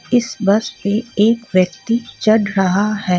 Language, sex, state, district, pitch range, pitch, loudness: Hindi, female, Jharkhand, Ranchi, 195-230 Hz, 210 Hz, -17 LUFS